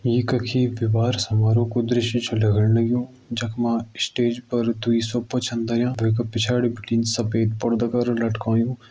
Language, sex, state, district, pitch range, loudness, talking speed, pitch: Garhwali, male, Uttarakhand, Uttarkashi, 115-120 Hz, -22 LUFS, 170 wpm, 115 Hz